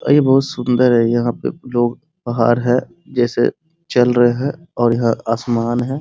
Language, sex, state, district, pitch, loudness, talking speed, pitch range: Hindi, male, Bihar, Muzaffarpur, 125 Hz, -17 LUFS, 190 wpm, 120-135 Hz